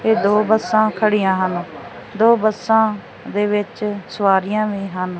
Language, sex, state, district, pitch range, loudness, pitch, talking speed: Punjabi, female, Punjab, Fazilka, 195-215 Hz, -18 LUFS, 210 Hz, 140 wpm